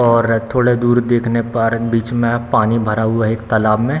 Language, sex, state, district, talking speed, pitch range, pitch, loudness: Hindi, male, Bihar, Samastipur, 210 wpm, 115-120 Hz, 115 Hz, -16 LUFS